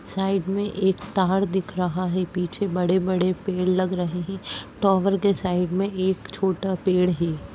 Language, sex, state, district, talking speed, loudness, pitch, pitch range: Hindi, female, Uttar Pradesh, Jyotiba Phule Nagar, 185 wpm, -24 LUFS, 185 Hz, 180-195 Hz